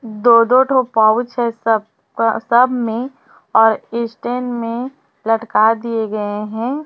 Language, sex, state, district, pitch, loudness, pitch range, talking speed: Hindi, female, Chhattisgarh, Raipur, 230 Hz, -16 LUFS, 225-245 Hz, 140 wpm